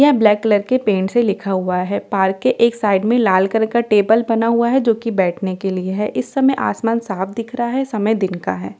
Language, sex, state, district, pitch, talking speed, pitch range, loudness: Hindi, female, Delhi, New Delhi, 215 Hz, 260 wpm, 190-235 Hz, -17 LUFS